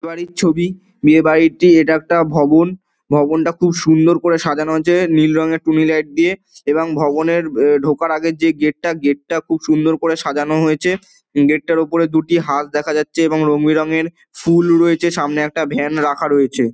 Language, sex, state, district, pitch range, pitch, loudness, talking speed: Bengali, male, West Bengal, Dakshin Dinajpur, 150-170 Hz, 160 Hz, -15 LUFS, 170 wpm